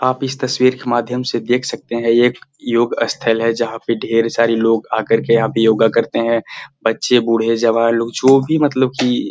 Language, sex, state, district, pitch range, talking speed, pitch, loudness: Hindi, male, Bihar, Gaya, 115-130 Hz, 225 wpm, 115 Hz, -16 LUFS